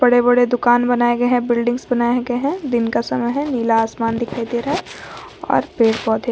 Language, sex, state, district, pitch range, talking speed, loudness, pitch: Hindi, female, Jharkhand, Garhwa, 230-245 Hz, 230 wpm, -18 LUFS, 240 Hz